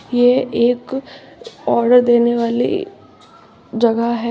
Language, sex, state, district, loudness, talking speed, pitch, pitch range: Hindi, female, Uttar Pradesh, Shamli, -16 LUFS, 95 wpm, 240 Hz, 235-245 Hz